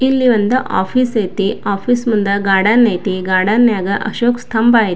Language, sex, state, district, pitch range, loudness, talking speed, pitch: Kannada, female, Karnataka, Belgaum, 200-240 Hz, -14 LUFS, 155 wpm, 215 Hz